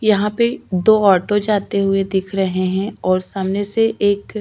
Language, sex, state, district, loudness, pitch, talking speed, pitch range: Hindi, female, Chhattisgarh, Sukma, -17 LUFS, 200 Hz, 190 wpm, 190-215 Hz